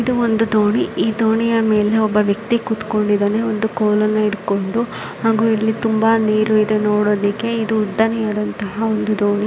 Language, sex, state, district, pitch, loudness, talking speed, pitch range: Kannada, female, Karnataka, Shimoga, 215 Hz, -17 LUFS, 140 wpm, 210-225 Hz